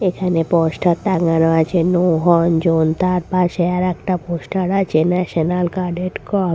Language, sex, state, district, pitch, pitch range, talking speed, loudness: Bengali, female, West Bengal, Purulia, 175 Hz, 165-185 Hz, 155 wpm, -17 LUFS